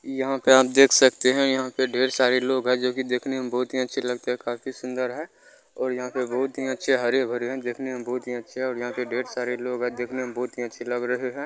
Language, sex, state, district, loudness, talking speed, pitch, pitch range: Maithili, male, Bihar, Begusarai, -24 LUFS, 265 wpm, 125 Hz, 125-130 Hz